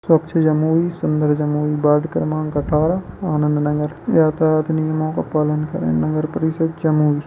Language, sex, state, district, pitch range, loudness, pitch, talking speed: Hindi, male, Bihar, Jamui, 150-160 Hz, -18 LUFS, 155 Hz, 140 wpm